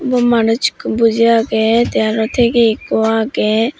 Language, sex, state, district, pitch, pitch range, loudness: Chakma, female, Tripura, Dhalai, 230 Hz, 220-240 Hz, -14 LUFS